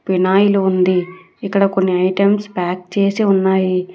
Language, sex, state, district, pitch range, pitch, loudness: Telugu, female, Telangana, Hyderabad, 185-200 Hz, 190 Hz, -16 LUFS